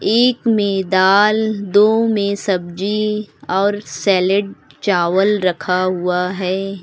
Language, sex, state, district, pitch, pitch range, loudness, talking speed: Hindi, female, Uttar Pradesh, Lucknow, 200 Hz, 185-210 Hz, -16 LUFS, 105 wpm